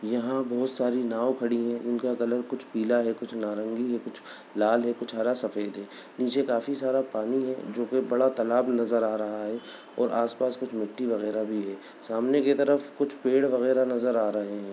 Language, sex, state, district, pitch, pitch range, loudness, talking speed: Hindi, male, Bihar, Bhagalpur, 120 Hz, 115-130 Hz, -27 LUFS, 205 wpm